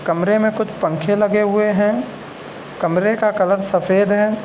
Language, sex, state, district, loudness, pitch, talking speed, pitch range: Hindi, male, Bihar, Darbhanga, -17 LUFS, 205 Hz, 160 wpm, 190-215 Hz